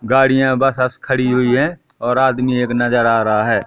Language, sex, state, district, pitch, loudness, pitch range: Hindi, male, Madhya Pradesh, Katni, 125 Hz, -15 LUFS, 120-130 Hz